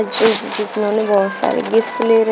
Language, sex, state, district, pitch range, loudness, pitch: Hindi, female, Uttar Pradesh, Shamli, 210-225 Hz, -16 LUFS, 220 Hz